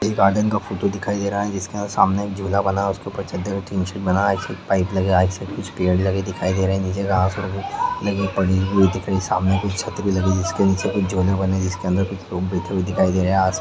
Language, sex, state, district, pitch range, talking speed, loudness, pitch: Hindi, male, Bihar, Gopalganj, 95-100 Hz, 250 wpm, -21 LUFS, 95 Hz